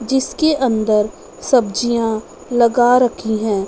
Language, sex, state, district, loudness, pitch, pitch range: Hindi, female, Punjab, Fazilka, -16 LUFS, 235 Hz, 220-250 Hz